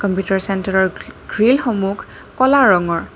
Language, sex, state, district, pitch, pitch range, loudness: Assamese, female, Assam, Kamrup Metropolitan, 195 Hz, 190-230 Hz, -16 LUFS